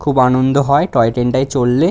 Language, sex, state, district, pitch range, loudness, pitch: Bengali, male, West Bengal, Dakshin Dinajpur, 125-140 Hz, -14 LUFS, 130 Hz